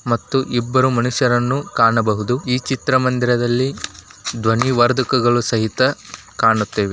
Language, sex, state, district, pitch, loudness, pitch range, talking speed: Kannada, male, Karnataka, Bijapur, 120 Hz, -17 LUFS, 115-130 Hz, 95 wpm